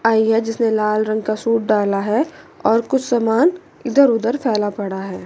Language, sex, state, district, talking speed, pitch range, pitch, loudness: Hindi, female, Chandigarh, Chandigarh, 195 wpm, 215-255 Hz, 225 Hz, -18 LUFS